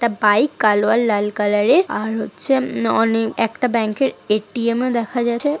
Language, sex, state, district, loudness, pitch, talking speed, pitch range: Bengali, female, West Bengal, Paschim Medinipur, -18 LUFS, 225 Hz, 225 wpm, 210-240 Hz